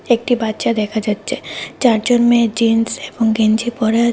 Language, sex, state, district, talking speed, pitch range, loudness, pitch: Bengali, female, Tripura, West Tripura, 160 wpm, 220-240 Hz, -16 LUFS, 230 Hz